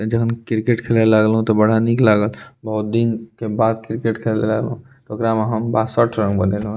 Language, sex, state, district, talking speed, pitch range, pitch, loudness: Maithili, male, Bihar, Madhepura, 210 wpm, 110-115 Hz, 110 Hz, -18 LUFS